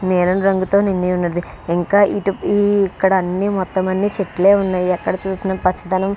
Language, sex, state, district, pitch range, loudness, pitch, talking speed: Telugu, female, Andhra Pradesh, Srikakulam, 185-195 Hz, -17 LUFS, 190 Hz, 175 wpm